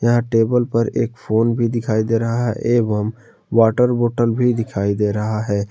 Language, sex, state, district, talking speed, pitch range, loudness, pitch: Hindi, male, Jharkhand, Palamu, 190 wpm, 110-120 Hz, -18 LUFS, 115 Hz